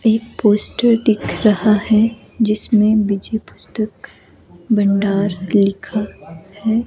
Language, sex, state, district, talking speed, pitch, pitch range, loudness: Hindi, female, Himachal Pradesh, Shimla, 95 wpm, 215 Hz, 200-220 Hz, -17 LUFS